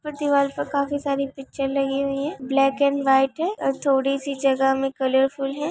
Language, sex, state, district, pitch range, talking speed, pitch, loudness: Hindi, female, Maharashtra, Solapur, 270-280 Hz, 200 wpm, 275 Hz, -22 LUFS